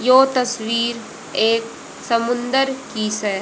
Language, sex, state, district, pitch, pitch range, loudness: Hindi, female, Haryana, Rohtak, 235 Hz, 225-255 Hz, -19 LUFS